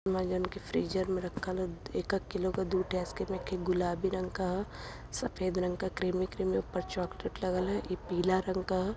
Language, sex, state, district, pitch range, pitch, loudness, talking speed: Hindi, female, Uttar Pradesh, Varanasi, 185-190 Hz, 185 Hz, -34 LUFS, 215 wpm